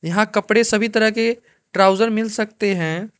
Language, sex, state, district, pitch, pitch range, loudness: Hindi, male, Arunachal Pradesh, Lower Dibang Valley, 215 Hz, 200-225 Hz, -18 LUFS